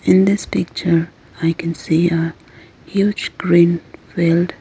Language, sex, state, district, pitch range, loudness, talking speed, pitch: English, female, Arunachal Pradesh, Lower Dibang Valley, 165-175 Hz, -17 LUFS, 130 wpm, 170 Hz